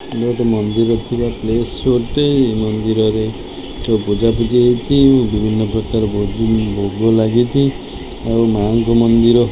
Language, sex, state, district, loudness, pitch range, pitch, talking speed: Odia, male, Odisha, Khordha, -15 LUFS, 110-120 Hz, 115 Hz, 115 wpm